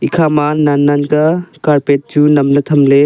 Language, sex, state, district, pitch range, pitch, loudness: Wancho, male, Arunachal Pradesh, Longding, 145-155 Hz, 150 Hz, -12 LUFS